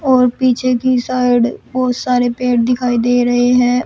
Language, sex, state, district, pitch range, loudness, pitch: Hindi, female, Uttar Pradesh, Shamli, 245-250 Hz, -14 LUFS, 245 Hz